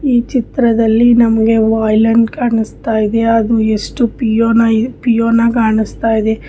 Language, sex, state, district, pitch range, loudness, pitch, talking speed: Kannada, female, Karnataka, Bijapur, 220-235 Hz, -12 LUFS, 230 Hz, 100 wpm